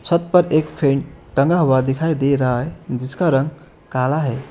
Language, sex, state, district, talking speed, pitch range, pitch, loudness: Hindi, male, West Bengal, Alipurduar, 185 wpm, 130-160 Hz, 140 Hz, -18 LUFS